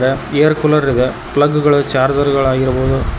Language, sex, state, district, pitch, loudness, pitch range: Kannada, male, Karnataka, Koppal, 140 Hz, -14 LUFS, 130-145 Hz